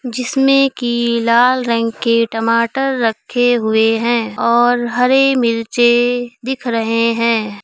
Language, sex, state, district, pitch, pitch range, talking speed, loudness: Hindi, female, Uttar Pradesh, Lucknow, 240 Hz, 230-245 Hz, 120 wpm, -15 LUFS